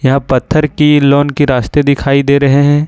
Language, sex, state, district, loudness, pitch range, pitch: Hindi, male, Jharkhand, Ranchi, -10 LUFS, 140-145 Hz, 140 Hz